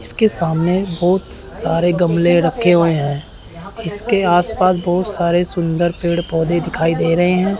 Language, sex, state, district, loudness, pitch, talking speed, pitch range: Hindi, male, Chandigarh, Chandigarh, -16 LUFS, 175 Hz, 160 wpm, 165-180 Hz